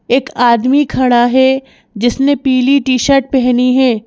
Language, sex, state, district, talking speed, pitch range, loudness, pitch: Hindi, female, Madhya Pradesh, Bhopal, 130 wpm, 245-270 Hz, -12 LUFS, 255 Hz